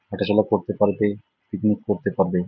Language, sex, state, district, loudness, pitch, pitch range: Bengali, male, West Bengal, Jhargram, -22 LUFS, 105 Hz, 100-105 Hz